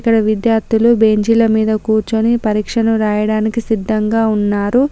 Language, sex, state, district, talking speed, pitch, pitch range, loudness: Telugu, female, Telangana, Komaram Bheem, 110 wpm, 220 Hz, 215-230 Hz, -14 LUFS